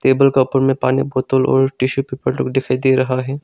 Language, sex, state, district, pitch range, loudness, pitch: Hindi, male, Arunachal Pradesh, Longding, 130-135 Hz, -16 LUFS, 130 Hz